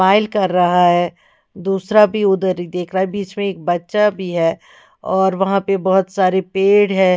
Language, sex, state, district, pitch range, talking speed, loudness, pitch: Hindi, female, Odisha, Khordha, 180-195 Hz, 200 wpm, -16 LUFS, 190 Hz